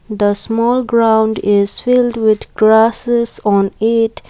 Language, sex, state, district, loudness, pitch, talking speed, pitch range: English, female, Assam, Kamrup Metropolitan, -13 LUFS, 220 Hz, 125 wpm, 210-235 Hz